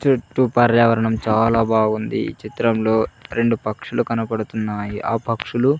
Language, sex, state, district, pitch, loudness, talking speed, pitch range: Telugu, male, Andhra Pradesh, Sri Satya Sai, 115 Hz, -20 LUFS, 115 wpm, 110-120 Hz